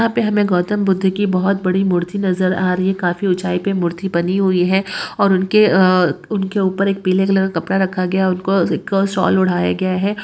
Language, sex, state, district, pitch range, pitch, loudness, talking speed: Hindi, female, West Bengal, Jalpaiguri, 180-195 Hz, 190 Hz, -17 LUFS, 220 wpm